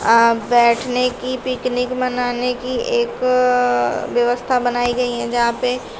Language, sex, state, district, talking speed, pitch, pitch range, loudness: Hindi, female, Uttar Pradesh, Shamli, 130 wpm, 250 Hz, 240-255 Hz, -18 LUFS